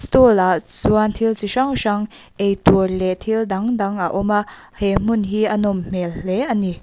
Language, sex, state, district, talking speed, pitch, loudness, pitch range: Mizo, female, Mizoram, Aizawl, 200 wpm, 205 Hz, -18 LUFS, 190-220 Hz